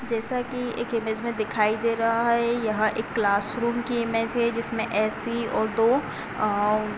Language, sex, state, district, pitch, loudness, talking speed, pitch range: Hindi, female, Bihar, Sitamarhi, 230 Hz, -25 LUFS, 155 wpm, 215-235 Hz